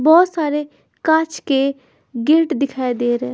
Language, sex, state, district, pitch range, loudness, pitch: Hindi, female, Bihar, Patna, 260-315 Hz, -18 LUFS, 290 Hz